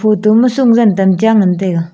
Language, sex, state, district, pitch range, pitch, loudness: Wancho, female, Arunachal Pradesh, Longding, 190-225 Hz, 215 Hz, -11 LUFS